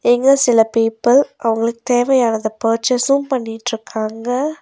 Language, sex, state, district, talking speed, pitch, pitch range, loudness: Tamil, female, Tamil Nadu, Nilgiris, 90 wpm, 240 Hz, 225-260 Hz, -16 LUFS